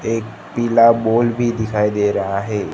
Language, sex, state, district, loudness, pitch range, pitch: Hindi, male, Gujarat, Gandhinagar, -17 LUFS, 105-115 Hz, 110 Hz